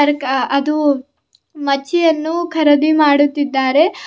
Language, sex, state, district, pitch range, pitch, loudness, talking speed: Kannada, female, Karnataka, Bidar, 280-315 Hz, 290 Hz, -15 LUFS, 75 wpm